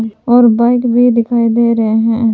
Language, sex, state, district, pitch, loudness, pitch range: Hindi, female, Jharkhand, Palamu, 235 Hz, -11 LUFS, 225-240 Hz